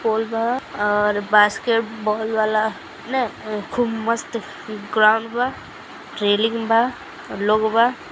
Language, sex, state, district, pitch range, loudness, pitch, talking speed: Hindi, female, Uttar Pradesh, Gorakhpur, 215-230 Hz, -20 LUFS, 220 Hz, 105 wpm